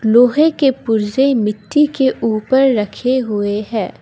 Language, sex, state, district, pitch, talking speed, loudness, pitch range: Hindi, female, Assam, Kamrup Metropolitan, 240 Hz, 135 wpm, -15 LUFS, 215-270 Hz